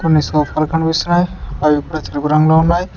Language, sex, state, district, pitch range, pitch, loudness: Telugu, male, Telangana, Mahabubabad, 150-165 Hz, 155 Hz, -15 LUFS